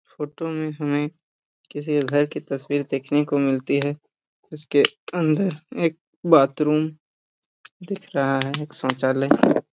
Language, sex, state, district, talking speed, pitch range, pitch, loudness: Hindi, male, Jharkhand, Jamtara, 130 wpm, 140-160 Hz, 150 Hz, -23 LUFS